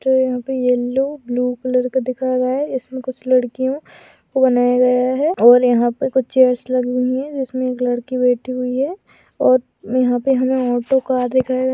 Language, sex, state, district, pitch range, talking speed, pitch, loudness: Hindi, female, Bihar, Jahanabad, 250-260 Hz, 200 wpm, 255 Hz, -17 LUFS